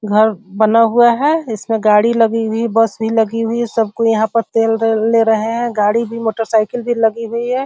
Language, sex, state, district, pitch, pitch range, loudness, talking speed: Hindi, female, Bihar, Sitamarhi, 225 Hz, 220-230 Hz, -15 LUFS, 220 wpm